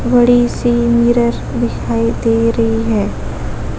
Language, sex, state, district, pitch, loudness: Hindi, female, Chhattisgarh, Raipur, 230 Hz, -15 LUFS